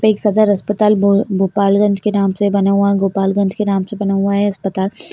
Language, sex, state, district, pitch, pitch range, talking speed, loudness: Kumaoni, female, Uttarakhand, Tehri Garhwal, 200 Hz, 195-205 Hz, 200 wpm, -15 LUFS